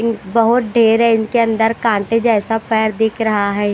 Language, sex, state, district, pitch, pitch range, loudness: Hindi, female, Bihar, West Champaran, 225 Hz, 215-230 Hz, -15 LUFS